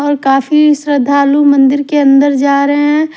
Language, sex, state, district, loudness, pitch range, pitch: Hindi, female, Haryana, Rohtak, -10 LUFS, 280-295 Hz, 285 Hz